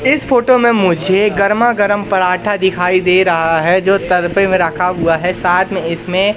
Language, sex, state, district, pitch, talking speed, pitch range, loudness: Hindi, male, Madhya Pradesh, Katni, 185 Hz, 190 wpm, 180-205 Hz, -13 LUFS